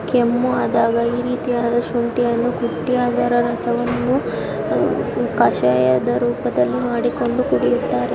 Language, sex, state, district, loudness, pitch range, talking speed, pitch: Kannada, female, Karnataka, Chamarajanagar, -19 LUFS, 230-245 Hz, 90 wpm, 240 Hz